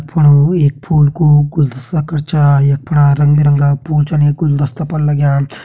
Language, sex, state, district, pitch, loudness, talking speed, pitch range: Hindi, male, Uttarakhand, Uttarkashi, 145 Hz, -12 LUFS, 180 wpm, 145-155 Hz